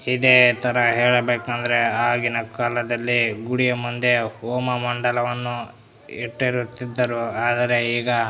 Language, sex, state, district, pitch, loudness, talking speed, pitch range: Kannada, male, Karnataka, Bellary, 120 Hz, -20 LUFS, 95 wpm, 120-125 Hz